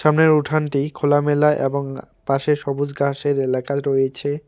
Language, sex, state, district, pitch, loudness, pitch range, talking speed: Bengali, male, West Bengal, Alipurduar, 145 Hz, -20 LUFS, 140-150 Hz, 120 wpm